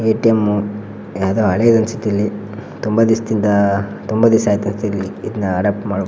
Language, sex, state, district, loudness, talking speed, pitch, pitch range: Kannada, male, Karnataka, Shimoga, -17 LUFS, 150 wpm, 105 Hz, 100-110 Hz